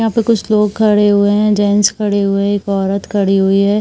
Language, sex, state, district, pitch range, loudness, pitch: Hindi, female, Bihar, Saharsa, 200-210 Hz, -13 LUFS, 205 Hz